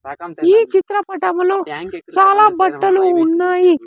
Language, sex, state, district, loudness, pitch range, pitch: Telugu, male, Andhra Pradesh, Sri Satya Sai, -14 LUFS, 355-385 Hz, 370 Hz